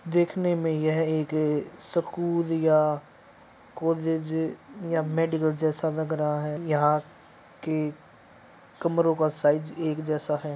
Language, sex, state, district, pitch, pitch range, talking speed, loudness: Hindi, male, Uttar Pradesh, Etah, 155 Hz, 150-165 Hz, 125 wpm, -26 LUFS